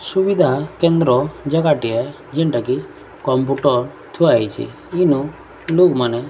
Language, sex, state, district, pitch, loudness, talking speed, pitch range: Odia, female, Odisha, Sambalpur, 145 Hz, -17 LUFS, 105 wpm, 130-165 Hz